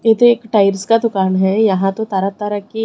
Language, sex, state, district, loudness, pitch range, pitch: Hindi, female, Odisha, Khordha, -15 LUFS, 195-225 Hz, 205 Hz